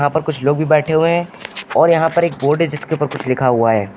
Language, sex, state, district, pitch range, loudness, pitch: Hindi, male, Uttar Pradesh, Lucknow, 140-160 Hz, -16 LUFS, 155 Hz